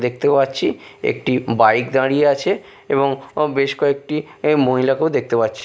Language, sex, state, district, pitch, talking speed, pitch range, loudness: Bengali, male, Bihar, Katihar, 135 Hz, 150 wpm, 130-145 Hz, -18 LUFS